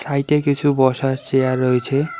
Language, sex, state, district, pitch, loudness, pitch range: Bengali, male, West Bengal, Alipurduar, 135 Hz, -18 LUFS, 130-145 Hz